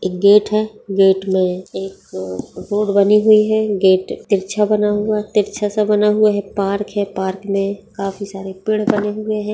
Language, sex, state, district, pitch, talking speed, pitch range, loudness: Hindi, female, Bihar, Begusarai, 205 Hz, 185 wpm, 195-210 Hz, -17 LUFS